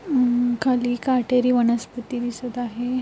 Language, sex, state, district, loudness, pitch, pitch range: Marathi, female, Maharashtra, Pune, -22 LUFS, 245 Hz, 240-250 Hz